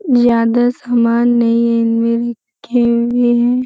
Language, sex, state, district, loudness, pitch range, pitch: Hindi, female, Bihar, Jamui, -14 LUFS, 235-245 Hz, 240 Hz